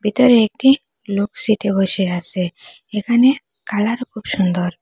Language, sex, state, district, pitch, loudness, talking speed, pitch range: Bengali, female, Assam, Hailakandi, 210 Hz, -18 LUFS, 125 wpm, 190-235 Hz